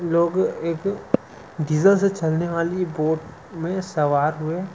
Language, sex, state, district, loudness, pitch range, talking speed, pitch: Hindi, male, Chhattisgarh, Sukma, -22 LUFS, 155-185 Hz, 140 wpm, 170 Hz